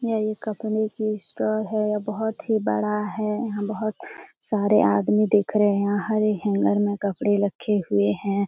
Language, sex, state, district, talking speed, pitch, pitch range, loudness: Hindi, female, Bihar, Jamui, 185 wpm, 210 Hz, 200-215 Hz, -23 LUFS